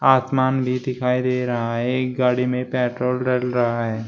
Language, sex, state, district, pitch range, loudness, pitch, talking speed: Hindi, male, Uttar Pradesh, Shamli, 125-130 Hz, -21 LUFS, 125 Hz, 190 wpm